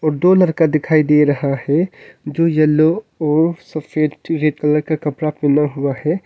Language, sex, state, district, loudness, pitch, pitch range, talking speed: Hindi, male, Arunachal Pradesh, Longding, -16 LUFS, 155 Hz, 150-160 Hz, 170 wpm